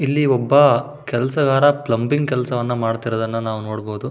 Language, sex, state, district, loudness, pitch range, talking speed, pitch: Kannada, male, Karnataka, Shimoga, -18 LUFS, 115-145 Hz, 130 wpm, 125 Hz